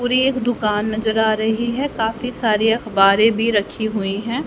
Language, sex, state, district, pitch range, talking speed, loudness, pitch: Hindi, female, Haryana, Rohtak, 215-240 Hz, 190 wpm, -18 LUFS, 220 Hz